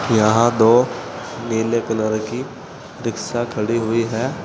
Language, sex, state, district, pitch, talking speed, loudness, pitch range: Hindi, male, Uttar Pradesh, Saharanpur, 115 Hz, 120 wpm, -19 LUFS, 110-120 Hz